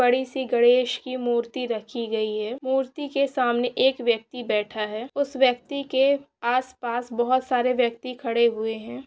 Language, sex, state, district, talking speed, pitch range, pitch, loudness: Hindi, female, Bihar, Saran, 170 wpm, 235-260 Hz, 245 Hz, -24 LUFS